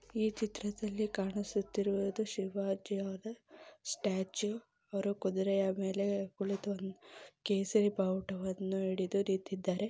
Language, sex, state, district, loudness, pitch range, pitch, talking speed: Kannada, female, Karnataka, Belgaum, -36 LUFS, 195-210 Hz, 200 Hz, 85 wpm